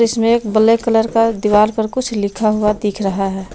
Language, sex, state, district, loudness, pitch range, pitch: Hindi, female, Jharkhand, Palamu, -15 LUFS, 210-230 Hz, 215 Hz